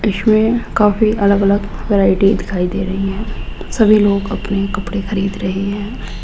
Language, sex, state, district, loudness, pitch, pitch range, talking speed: Hindi, female, Rajasthan, Jaipur, -15 LUFS, 200 Hz, 195-210 Hz, 155 wpm